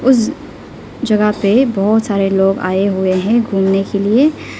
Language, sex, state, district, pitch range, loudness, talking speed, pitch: Hindi, female, Arunachal Pradesh, Lower Dibang Valley, 195-230 Hz, -14 LUFS, 155 wpm, 200 Hz